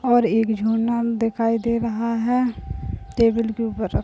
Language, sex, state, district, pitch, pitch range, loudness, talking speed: Hindi, female, Uttar Pradesh, Budaun, 230 Hz, 225-235 Hz, -22 LUFS, 165 wpm